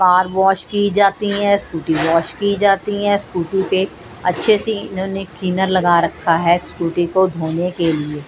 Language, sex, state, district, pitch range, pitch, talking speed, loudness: Hindi, female, Odisha, Malkangiri, 170-200 Hz, 185 Hz, 175 wpm, -17 LUFS